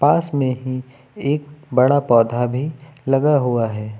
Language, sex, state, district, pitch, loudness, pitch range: Hindi, male, Uttar Pradesh, Lucknow, 135 Hz, -19 LUFS, 125-145 Hz